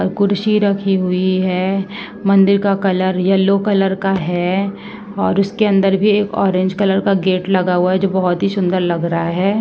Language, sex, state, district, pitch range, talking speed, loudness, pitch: Hindi, female, Uttar Pradesh, Ghazipur, 185-200 Hz, 200 wpm, -16 LUFS, 195 Hz